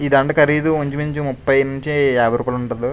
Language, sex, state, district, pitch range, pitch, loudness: Telugu, male, Andhra Pradesh, Chittoor, 125-150 Hz, 140 Hz, -17 LUFS